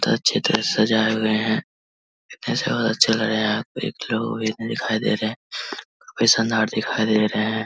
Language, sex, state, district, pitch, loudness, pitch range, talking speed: Hindi, male, Bihar, Vaishali, 110 Hz, -21 LUFS, 105-110 Hz, 190 wpm